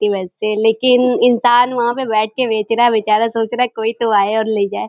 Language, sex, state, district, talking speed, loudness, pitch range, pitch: Hindi, female, Uttar Pradesh, Deoria, 280 wpm, -15 LUFS, 215-245 Hz, 225 Hz